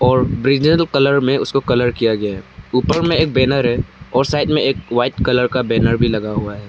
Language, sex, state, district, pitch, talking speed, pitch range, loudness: Hindi, male, Arunachal Pradesh, Lower Dibang Valley, 125 Hz, 225 wpm, 115-135 Hz, -16 LUFS